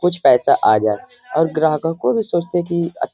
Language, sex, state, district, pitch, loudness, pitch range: Hindi, male, Bihar, Jamui, 170 Hz, -17 LUFS, 155-175 Hz